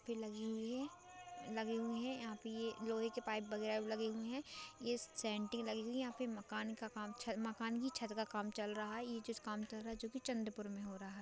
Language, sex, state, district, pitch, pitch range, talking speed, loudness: Hindi, female, Maharashtra, Chandrapur, 225 Hz, 215-240 Hz, 255 wpm, -44 LUFS